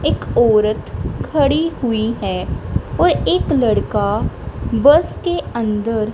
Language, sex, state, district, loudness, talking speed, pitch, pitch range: Hindi, female, Punjab, Kapurthala, -17 LUFS, 105 wpm, 230 Hz, 215-290 Hz